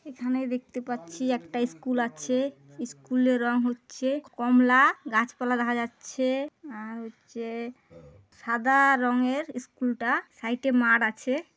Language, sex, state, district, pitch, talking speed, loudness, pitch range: Bengali, female, West Bengal, Paschim Medinipur, 250 Hz, 125 wpm, -26 LUFS, 235-260 Hz